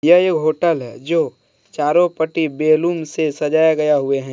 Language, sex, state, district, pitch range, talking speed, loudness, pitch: Hindi, male, Jharkhand, Deoghar, 145-165 Hz, 165 wpm, -17 LUFS, 155 Hz